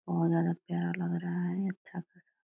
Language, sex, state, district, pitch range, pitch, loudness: Hindi, female, Bihar, Purnia, 170-180 Hz, 175 Hz, -33 LUFS